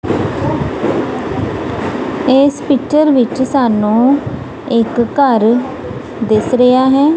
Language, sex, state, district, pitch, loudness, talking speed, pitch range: Punjabi, female, Punjab, Kapurthala, 260 Hz, -13 LUFS, 75 wpm, 235-280 Hz